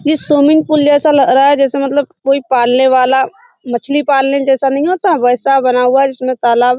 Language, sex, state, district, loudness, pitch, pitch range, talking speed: Hindi, female, Uttar Pradesh, Budaun, -11 LUFS, 275 Hz, 255-290 Hz, 210 wpm